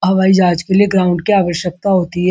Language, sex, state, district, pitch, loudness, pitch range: Hindi, female, Uttar Pradesh, Muzaffarnagar, 185 Hz, -14 LUFS, 175-195 Hz